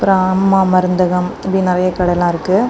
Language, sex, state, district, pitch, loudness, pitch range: Tamil, female, Tamil Nadu, Kanyakumari, 185 Hz, -14 LUFS, 180-190 Hz